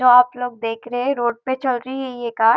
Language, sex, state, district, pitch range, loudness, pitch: Hindi, female, Maharashtra, Nagpur, 235-260 Hz, -21 LUFS, 245 Hz